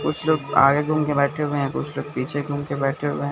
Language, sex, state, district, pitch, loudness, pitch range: Hindi, male, Bihar, Katihar, 145 Hz, -22 LUFS, 140-150 Hz